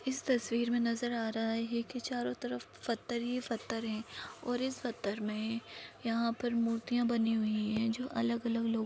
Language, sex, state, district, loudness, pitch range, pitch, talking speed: Hindi, female, Maharashtra, Nagpur, -35 LUFS, 225-240 Hz, 230 Hz, 190 wpm